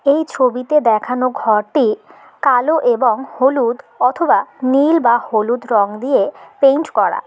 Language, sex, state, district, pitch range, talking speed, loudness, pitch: Bengali, female, West Bengal, Jalpaiguri, 240-300 Hz, 125 wpm, -15 LUFS, 260 Hz